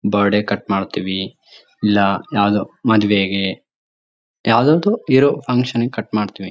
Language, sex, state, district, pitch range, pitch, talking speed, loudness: Kannada, male, Karnataka, Bellary, 100-120 Hz, 105 Hz, 120 wpm, -17 LUFS